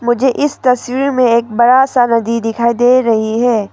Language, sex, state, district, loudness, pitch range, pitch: Hindi, female, Arunachal Pradesh, Papum Pare, -12 LUFS, 230-255 Hz, 240 Hz